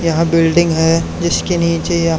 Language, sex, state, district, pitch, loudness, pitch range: Hindi, male, Haryana, Charkhi Dadri, 165 Hz, -14 LUFS, 165-170 Hz